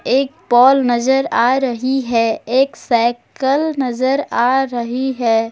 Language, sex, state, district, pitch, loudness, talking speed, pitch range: Hindi, female, Jharkhand, Palamu, 255 Hz, -16 LUFS, 130 wpm, 240-270 Hz